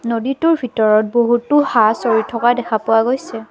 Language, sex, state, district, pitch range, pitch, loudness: Assamese, female, Assam, Kamrup Metropolitan, 220-250 Hz, 235 Hz, -15 LUFS